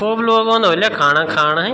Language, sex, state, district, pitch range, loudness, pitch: Garhwali, male, Uttarakhand, Tehri Garhwal, 155-225 Hz, -14 LUFS, 215 Hz